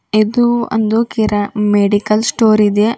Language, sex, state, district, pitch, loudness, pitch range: Kannada, female, Karnataka, Bidar, 215 Hz, -14 LUFS, 210-230 Hz